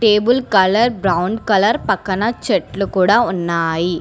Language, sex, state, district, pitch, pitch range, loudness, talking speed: Telugu, female, Telangana, Hyderabad, 195 Hz, 185-220 Hz, -16 LUFS, 120 wpm